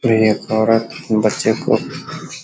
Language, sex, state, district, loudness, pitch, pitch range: Hindi, male, Bihar, Sitamarhi, -17 LUFS, 110 Hz, 110-115 Hz